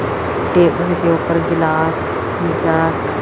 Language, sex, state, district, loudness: Hindi, female, Chandigarh, Chandigarh, -16 LUFS